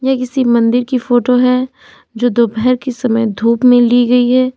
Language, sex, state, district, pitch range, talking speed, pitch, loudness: Hindi, female, Uttar Pradesh, Lalitpur, 240-255 Hz, 195 wpm, 245 Hz, -12 LUFS